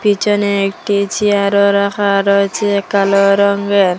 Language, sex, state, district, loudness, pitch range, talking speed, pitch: Bengali, female, Assam, Hailakandi, -13 LUFS, 200-205 Hz, 105 wpm, 200 Hz